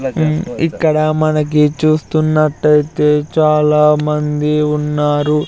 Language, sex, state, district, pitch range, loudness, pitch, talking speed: Telugu, male, Andhra Pradesh, Sri Satya Sai, 150-155 Hz, -14 LUFS, 150 Hz, 75 wpm